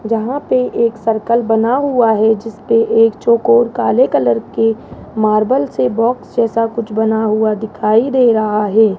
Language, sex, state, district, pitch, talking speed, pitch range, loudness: Hindi, male, Rajasthan, Jaipur, 225 Hz, 165 wpm, 220-240 Hz, -14 LUFS